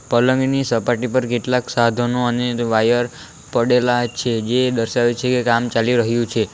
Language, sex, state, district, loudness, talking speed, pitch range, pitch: Gujarati, male, Gujarat, Valsad, -18 LUFS, 165 wpm, 120-125 Hz, 120 Hz